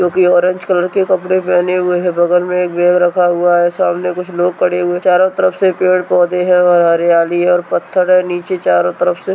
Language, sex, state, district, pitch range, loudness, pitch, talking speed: Hindi, male, Bihar, Purnia, 175-185 Hz, -13 LUFS, 180 Hz, 245 wpm